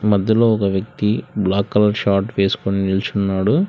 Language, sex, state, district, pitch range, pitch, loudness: Telugu, male, Telangana, Hyderabad, 95-110 Hz, 100 Hz, -18 LUFS